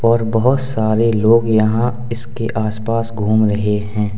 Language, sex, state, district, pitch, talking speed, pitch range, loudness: Hindi, male, Uttar Pradesh, Lalitpur, 115 Hz, 160 wpm, 110-115 Hz, -16 LUFS